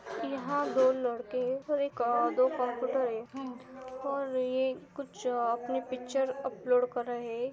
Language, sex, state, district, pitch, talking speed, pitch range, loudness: Hindi, female, Maharashtra, Aurangabad, 255 Hz, 135 wpm, 245-265 Hz, -32 LUFS